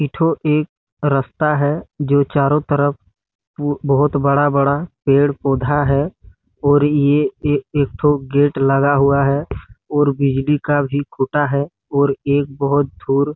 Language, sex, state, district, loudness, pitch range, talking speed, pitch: Hindi, male, Chhattisgarh, Bastar, -17 LUFS, 140-145 Hz, 135 wpm, 145 Hz